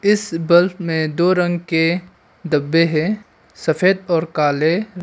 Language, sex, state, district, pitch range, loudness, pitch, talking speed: Hindi, male, Arunachal Pradesh, Longding, 160-185 Hz, -18 LUFS, 175 Hz, 130 wpm